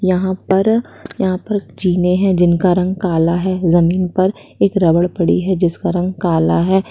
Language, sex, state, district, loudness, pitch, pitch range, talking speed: Hindi, female, Chhattisgarh, Sukma, -15 LUFS, 185 Hz, 175-190 Hz, 175 wpm